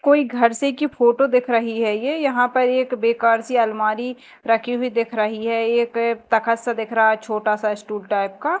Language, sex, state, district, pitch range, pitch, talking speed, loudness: Hindi, female, Madhya Pradesh, Dhar, 225-250 Hz, 230 Hz, 215 wpm, -20 LUFS